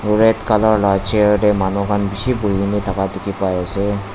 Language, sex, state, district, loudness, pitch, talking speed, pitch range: Nagamese, male, Nagaland, Dimapur, -17 LUFS, 100 Hz, 215 wpm, 100-105 Hz